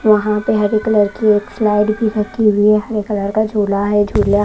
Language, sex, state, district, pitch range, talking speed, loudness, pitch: Hindi, female, Maharashtra, Washim, 205-215 Hz, 240 wpm, -15 LUFS, 210 Hz